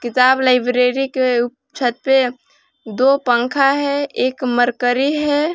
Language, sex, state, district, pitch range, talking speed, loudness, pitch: Hindi, female, Jharkhand, Palamu, 245-280 Hz, 120 wpm, -16 LUFS, 260 Hz